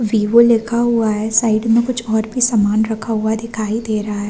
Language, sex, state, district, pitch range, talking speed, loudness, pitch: Hindi, female, Chhattisgarh, Rajnandgaon, 215-230 Hz, 225 wpm, -16 LUFS, 220 Hz